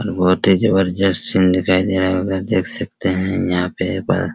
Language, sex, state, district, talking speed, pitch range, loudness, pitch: Hindi, male, Bihar, Araria, 205 wpm, 90-95 Hz, -17 LUFS, 95 Hz